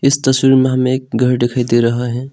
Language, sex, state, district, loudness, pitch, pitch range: Hindi, male, Arunachal Pradesh, Lower Dibang Valley, -14 LUFS, 130 Hz, 120-130 Hz